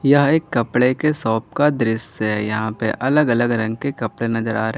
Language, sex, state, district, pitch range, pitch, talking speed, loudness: Hindi, male, Jharkhand, Garhwa, 110-140 Hz, 115 Hz, 240 wpm, -19 LUFS